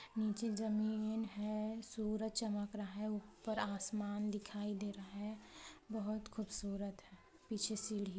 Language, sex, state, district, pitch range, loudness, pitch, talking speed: Hindi, female, Chhattisgarh, Balrampur, 205-220 Hz, -42 LUFS, 215 Hz, 140 wpm